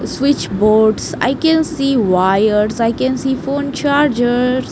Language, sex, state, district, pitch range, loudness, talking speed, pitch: English, female, Haryana, Jhajjar, 220-280 Hz, -15 LUFS, 140 wpm, 255 Hz